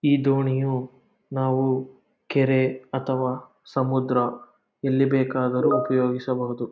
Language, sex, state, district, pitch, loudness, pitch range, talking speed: Kannada, male, Karnataka, Mysore, 130 Hz, -24 LUFS, 125-135 Hz, 80 wpm